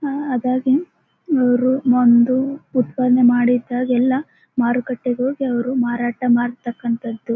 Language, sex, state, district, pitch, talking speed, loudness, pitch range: Kannada, female, Karnataka, Bellary, 250 Hz, 100 wpm, -18 LUFS, 240-260 Hz